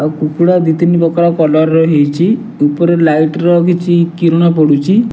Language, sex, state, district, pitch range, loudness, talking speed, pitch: Odia, male, Odisha, Nuapada, 155-175 Hz, -11 LUFS, 150 wpm, 170 Hz